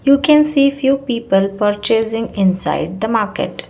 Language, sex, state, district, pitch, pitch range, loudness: English, female, Karnataka, Bangalore, 225 Hz, 205-275 Hz, -15 LUFS